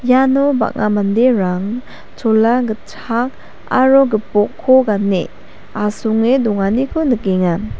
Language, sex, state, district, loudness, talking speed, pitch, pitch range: Garo, female, Meghalaya, South Garo Hills, -15 LUFS, 90 wpm, 225 Hz, 205-260 Hz